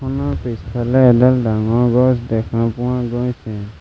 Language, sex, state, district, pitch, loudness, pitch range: Assamese, male, Assam, Sonitpur, 120 Hz, -16 LUFS, 110-125 Hz